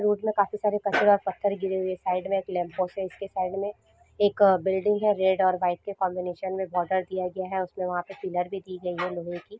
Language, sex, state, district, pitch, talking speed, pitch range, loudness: Hindi, female, Jharkhand, Jamtara, 190 Hz, 245 wpm, 185-200 Hz, -27 LUFS